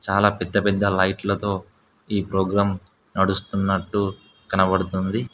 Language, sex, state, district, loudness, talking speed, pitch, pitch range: Telugu, male, Telangana, Hyderabad, -23 LUFS, 90 wpm, 100 Hz, 95-100 Hz